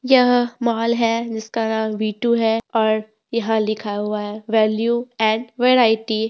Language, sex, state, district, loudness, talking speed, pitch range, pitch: Hindi, female, Bihar, Purnia, -19 LUFS, 160 wpm, 215-235 Hz, 225 Hz